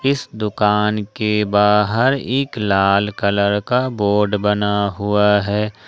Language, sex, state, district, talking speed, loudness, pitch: Hindi, male, Jharkhand, Ranchi, 125 wpm, -17 LUFS, 105 Hz